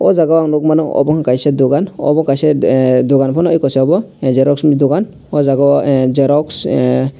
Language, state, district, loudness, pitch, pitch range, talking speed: Kokborok, Tripura, Dhalai, -13 LUFS, 140 Hz, 135-155 Hz, 185 wpm